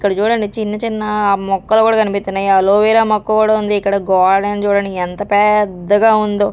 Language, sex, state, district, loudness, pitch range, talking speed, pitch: Telugu, female, Andhra Pradesh, Sri Satya Sai, -14 LUFS, 200-215 Hz, 155 wpm, 205 Hz